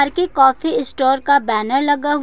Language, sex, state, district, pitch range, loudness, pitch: Hindi, female, Jharkhand, Ranchi, 265-290 Hz, -16 LUFS, 275 Hz